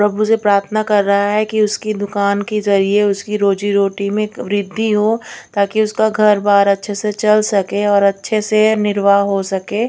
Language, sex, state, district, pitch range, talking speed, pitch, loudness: Hindi, female, Chandigarh, Chandigarh, 200-215 Hz, 190 wpm, 205 Hz, -15 LUFS